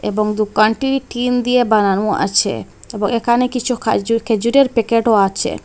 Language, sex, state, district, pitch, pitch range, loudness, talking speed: Bengali, female, Assam, Hailakandi, 230 Hz, 215-245 Hz, -16 LUFS, 125 wpm